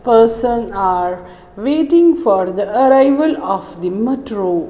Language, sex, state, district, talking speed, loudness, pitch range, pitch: English, female, Maharashtra, Mumbai Suburban, 115 wpm, -15 LUFS, 185-270 Hz, 225 Hz